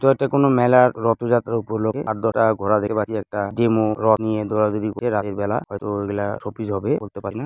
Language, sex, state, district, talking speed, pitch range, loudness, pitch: Bengali, male, West Bengal, Jalpaiguri, 195 wpm, 105-115 Hz, -21 LUFS, 110 Hz